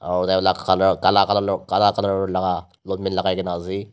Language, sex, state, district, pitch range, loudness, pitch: Nagamese, male, Nagaland, Dimapur, 90-95 Hz, -20 LUFS, 95 Hz